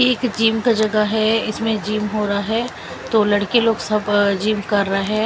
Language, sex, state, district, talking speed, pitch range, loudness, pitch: Hindi, female, Chandigarh, Chandigarh, 205 wpm, 205-225 Hz, -18 LUFS, 215 Hz